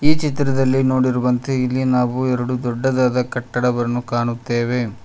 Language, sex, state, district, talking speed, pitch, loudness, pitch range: Kannada, male, Karnataka, Koppal, 105 wpm, 125 Hz, -19 LUFS, 120-130 Hz